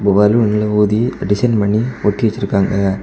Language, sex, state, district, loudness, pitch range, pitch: Tamil, male, Tamil Nadu, Kanyakumari, -15 LUFS, 100-110 Hz, 105 Hz